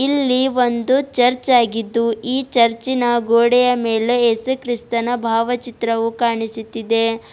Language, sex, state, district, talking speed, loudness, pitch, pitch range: Kannada, female, Karnataka, Bidar, 100 wpm, -17 LUFS, 235 Hz, 230-250 Hz